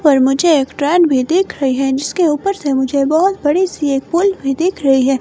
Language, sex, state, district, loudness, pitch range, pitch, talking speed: Hindi, female, Himachal Pradesh, Shimla, -14 LUFS, 270-345 Hz, 290 Hz, 240 wpm